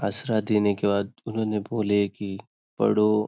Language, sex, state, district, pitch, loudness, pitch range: Hindi, male, Maharashtra, Nagpur, 105 Hz, -25 LUFS, 100-110 Hz